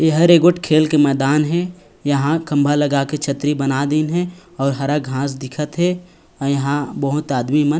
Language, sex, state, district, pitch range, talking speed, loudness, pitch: Chhattisgarhi, male, Chhattisgarh, Raigarh, 140-160 Hz, 200 wpm, -18 LUFS, 150 Hz